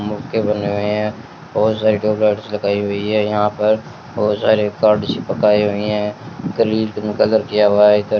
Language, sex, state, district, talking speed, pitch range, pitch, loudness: Hindi, male, Rajasthan, Bikaner, 145 wpm, 105-110 Hz, 105 Hz, -17 LUFS